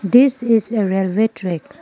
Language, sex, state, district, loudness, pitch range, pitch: English, female, Arunachal Pradesh, Lower Dibang Valley, -17 LUFS, 190-235 Hz, 215 Hz